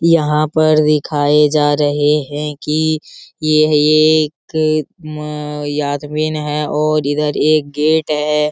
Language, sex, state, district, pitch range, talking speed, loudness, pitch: Hindi, male, Bihar, Araria, 150-155 Hz, 120 wpm, -15 LUFS, 150 Hz